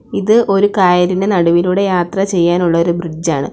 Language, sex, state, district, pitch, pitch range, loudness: Malayalam, female, Kerala, Kollam, 180 Hz, 170-195 Hz, -13 LUFS